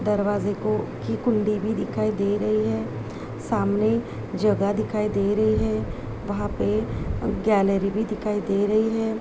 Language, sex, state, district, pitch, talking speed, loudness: Hindi, female, Chhattisgarh, Balrampur, 205 Hz, 150 wpm, -24 LUFS